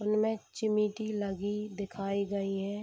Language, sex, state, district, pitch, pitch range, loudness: Hindi, female, Bihar, Saharsa, 205 Hz, 200-210 Hz, -33 LUFS